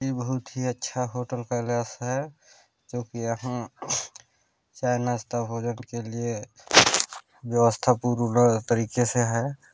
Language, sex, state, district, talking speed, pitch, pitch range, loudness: Hindi, male, Chhattisgarh, Balrampur, 125 wpm, 120 Hz, 115-125 Hz, -25 LUFS